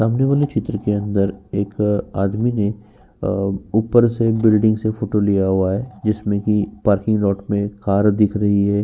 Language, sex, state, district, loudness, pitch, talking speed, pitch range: Hindi, male, Uttar Pradesh, Jyotiba Phule Nagar, -19 LUFS, 105 Hz, 175 wpm, 100-110 Hz